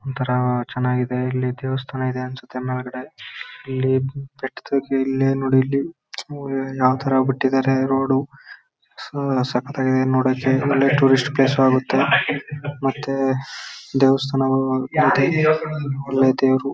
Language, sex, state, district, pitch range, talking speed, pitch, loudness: Kannada, male, Karnataka, Chamarajanagar, 130-135 Hz, 95 wpm, 135 Hz, -20 LUFS